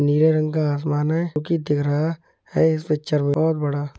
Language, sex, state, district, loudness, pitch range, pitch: Hindi, male, Uttar Pradesh, Etah, -21 LUFS, 145-160 Hz, 150 Hz